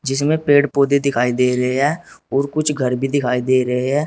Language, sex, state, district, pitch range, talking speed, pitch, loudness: Hindi, male, Uttar Pradesh, Saharanpur, 125-145 Hz, 220 wpm, 140 Hz, -17 LUFS